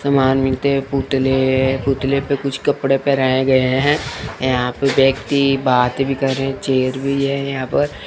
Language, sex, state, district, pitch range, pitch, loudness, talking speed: Hindi, male, Chandigarh, Chandigarh, 130-140 Hz, 135 Hz, -17 LUFS, 170 wpm